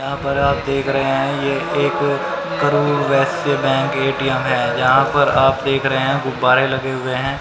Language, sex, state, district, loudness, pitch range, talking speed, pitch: Hindi, male, Haryana, Rohtak, -17 LUFS, 135-140 Hz, 155 wpm, 135 Hz